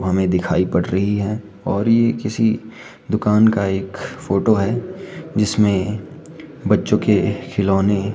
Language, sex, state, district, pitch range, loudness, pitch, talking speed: Hindi, male, Himachal Pradesh, Shimla, 100-115 Hz, -18 LUFS, 105 Hz, 125 wpm